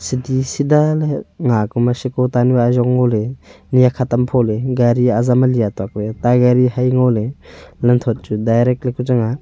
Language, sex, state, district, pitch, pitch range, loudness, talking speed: Wancho, male, Arunachal Pradesh, Longding, 125 Hz, 120-125 Hz, -16 LUFS, 215 wpm